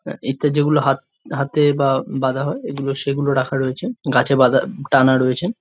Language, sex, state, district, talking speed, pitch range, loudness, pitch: Bengali, male, West Bengal, Jhargram, 170 wpm, 135-145 Hz, -18 LUFS, 135 Hz